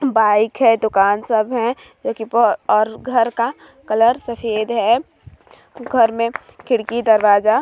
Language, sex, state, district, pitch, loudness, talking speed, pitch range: Hindi, female, Chhattisgarh, Balrampur, 230 Hz, -17 LUFS, 110 wpm, 220-240 Hz